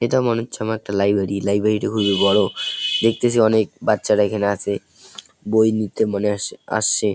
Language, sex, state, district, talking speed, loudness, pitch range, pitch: Bengali, male, West Bengal, Jalpaiguri, 195 wpm, -19 LUFS, 100-110 Hz, 105 Hz